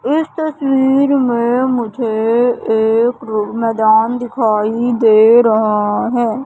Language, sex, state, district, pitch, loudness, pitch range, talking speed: Hindi, female, Madhya Pradesh, Katni, 235 Hz, -14 LUFS, 220-255 Hz, 95 wpm